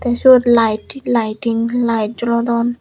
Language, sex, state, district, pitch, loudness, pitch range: Chakma, female, Tripura, Unakoti, 235 Hz, -15 LUFS, 230-240 Hz